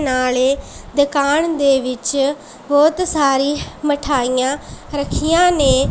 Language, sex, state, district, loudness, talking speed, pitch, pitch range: Punjabi, female, Punjab, Pathankot, -17 LUFS, 90 wpm, 285 Hz, 265-295 Hz